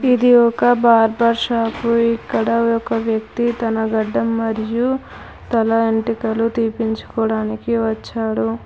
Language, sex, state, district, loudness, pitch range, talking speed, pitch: Telugu, female, Telangana, Hyderabad, -18 LUFS, 220-235 Hz, 95 wpm, 230 Hz